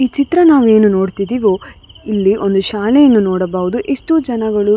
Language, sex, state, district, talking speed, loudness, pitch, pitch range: Kannada, female, Karnataka, Dakshina Kannada, 150 wpm, -13 LUFS, 215 Hz, 195-260 Hz